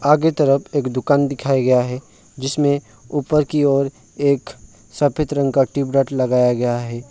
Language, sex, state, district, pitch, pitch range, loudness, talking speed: Hindi, male, West Bengal, Alipurduar, 135 Hz, 125-145 Hz, -18 LUFS, 160 wpm